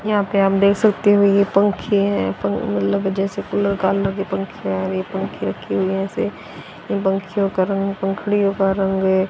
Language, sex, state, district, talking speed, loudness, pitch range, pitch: Hindi, female, Haryana, Rohtak, 215 wpm, -19 LUFS, 190-200 Hz, 195 Hz